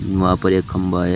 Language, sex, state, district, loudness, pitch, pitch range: Hindi, male, Uttar Pradesh, Shamli, -18 LUFS, 95 Hz, 90-95 Hz